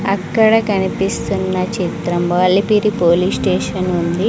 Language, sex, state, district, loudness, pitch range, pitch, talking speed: Telugu, female, Andhra Pradesh, Sri Satya Sai, -16 LUFS, 180-200 Hz, 190 Hz, 100 wpm